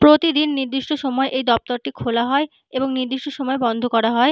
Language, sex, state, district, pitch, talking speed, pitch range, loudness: Bengali, female, West Bengal, Malda, 265 Hz, 180 wpm, 245-280 Hz, -20 LUFS